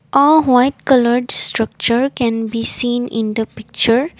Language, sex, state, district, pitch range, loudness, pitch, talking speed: English, female, Assam, Kamrup Metropolitan, 225-260 Hz, -15 LUFS, 240 Hz, 145 wpm